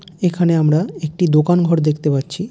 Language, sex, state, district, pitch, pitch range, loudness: Bengali, male, West Bengal, Jalpaiguri, 170 Hz, 155-175 Hz, -16 LUFS